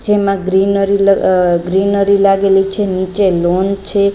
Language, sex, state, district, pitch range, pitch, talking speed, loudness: Gujarati, female, Gujarat, Gandhinagar, 190-200 Hz, 195 Hz, 145 wpm, -13 LUFS